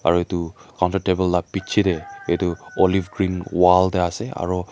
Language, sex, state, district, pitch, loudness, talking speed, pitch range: Nagamese, male, Nagaland, Dimapur, 90 Hz, -21 LUFS, 165 wpm, 90-95 Hz